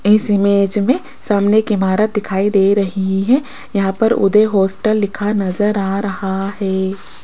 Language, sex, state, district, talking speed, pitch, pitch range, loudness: Hindi, female, Rajasthan, Jaipur, 155 wpm, 200 Hz, 195-210 Hz, -16 LUFS